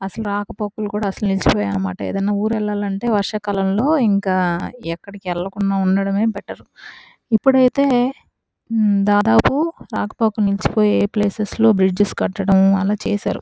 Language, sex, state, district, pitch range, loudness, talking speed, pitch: Telugu, female, Andhra Pradesh, Chittoor, 195-215 Hz, -18 LUFS, 115 wpm, 205 Hz